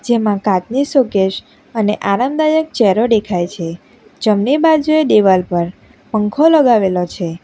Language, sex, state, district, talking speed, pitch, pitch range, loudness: Gujarati, female, Gujarat, Valsad, 120 wpm, 215 Hz, 190-270 Hz, -14 LUFS